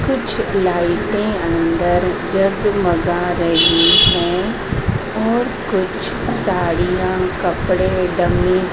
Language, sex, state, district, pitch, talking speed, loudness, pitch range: Hindi, female, Madhya Pradesh, Dhar, 180 Hz, 80 wpm, -16 LUFS, 175-195 Hz